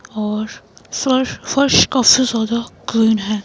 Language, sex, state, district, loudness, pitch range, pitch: Hindi, female, Himachal Pradesh, Shimla, -16 LUFS, 215-260 Hz, 230 Hz